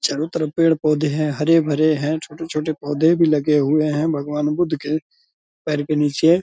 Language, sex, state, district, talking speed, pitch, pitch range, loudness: Hindi, male, Bihar, Purnia, 170 wpm, 155 Hz, 150-160 Hz, -19 LUFS